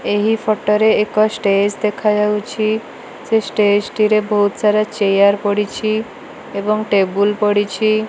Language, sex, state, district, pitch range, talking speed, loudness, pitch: Odia, female, Odisha, Malkangiri, 205-215 Hz, 135 wpm, -16 LUFS, 210 Hz